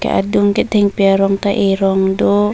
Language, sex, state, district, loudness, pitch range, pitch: Karbi, female, Assam, Karbi Anglong, -14 LUFS, 195-205 Hz, 200 Hz